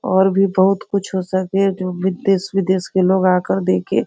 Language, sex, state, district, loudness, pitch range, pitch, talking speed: Hindi, female, Bihar, Sitamarhi, -17 LUFS, 185-195 Hz, 190 Hz, 175 wpm